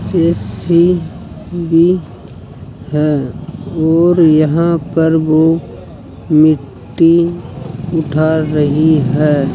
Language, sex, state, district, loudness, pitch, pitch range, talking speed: Hindi, male, Rajasthan, Jaipur, -13 LUFS, 160 Hz, 150-165 Hz, 55 wpm